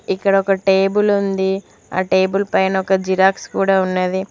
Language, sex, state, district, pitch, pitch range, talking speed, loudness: Telugu, female, Telangana, Mahabubabad, 190 Hz, 190-195 Hz, 155 wpm, -17 LUFS